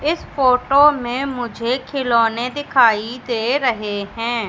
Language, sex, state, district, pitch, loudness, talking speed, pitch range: Hindi, female, Madhya Pradesh, Katni, 245 Hz, -18 LUFS, 120 wpm, 230-270 Hz